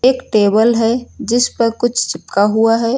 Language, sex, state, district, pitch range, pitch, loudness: Hindi, female, Uttar Pradesh, Lucknow, 225-245 Hz, 230 Hz, -15 LUFS